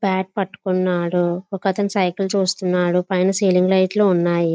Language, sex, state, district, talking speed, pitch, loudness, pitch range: Telugu, female, Andhra Pradesh, Visakhapatnam, 145 wpm, 185 Hz, -19 LUFS, 180-195 Hz